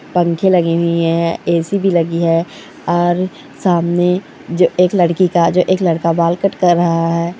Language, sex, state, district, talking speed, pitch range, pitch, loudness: Hindi, female, Chhattisgarh, Korba, 180 wpm, 170-180 Hz, 175 Hz, -15 LUFS